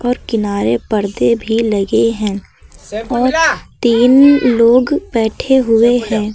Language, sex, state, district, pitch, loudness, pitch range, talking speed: Hindi, female, Uttar Pradesh, Lucknow, 230 Hz, -13 LUFS, 215-245 Hz, 115 wpm